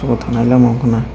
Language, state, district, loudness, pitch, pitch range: Kokborok, Tripura, Dhalai, -13 LUFS, 120 Hz, 115-125 Hz